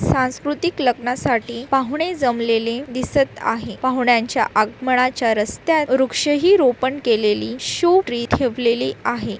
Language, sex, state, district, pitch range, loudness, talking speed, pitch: Marathi, female, Maharashtra, Solapur, 235-275 Hz, -19 LUFS, 100 wpm, 255 Hz